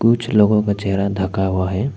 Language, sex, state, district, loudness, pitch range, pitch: Hindi, male, Arunachal Pradesh, Papum Pare, -18 LUFS, 95-110 Hz, 100 Hz